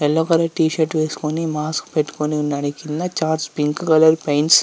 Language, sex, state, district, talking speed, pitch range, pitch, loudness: Telugu, male, Andhra Pradesh, Visakhapatnam, 155 wpm, 150-160 Hz, 155 Hz, -19 LUFS